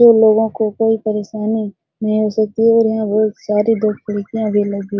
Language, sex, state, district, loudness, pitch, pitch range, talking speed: Hindi, female, Bihar, Araria, -16 LUFS, 215 Hz, 210-220 Hz, 215 wpm